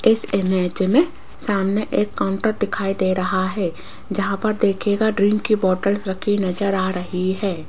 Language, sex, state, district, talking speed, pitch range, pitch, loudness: Hindi, female, Rajasthan, Jaipur, 165 wpm, 185-210 Hz, 195 Hz, -20 LUFS